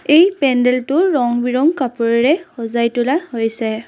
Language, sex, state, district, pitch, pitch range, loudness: Assamese, female, Assam, Sonitpur, 250 Hz, 235-305 Hz, -16 LUFS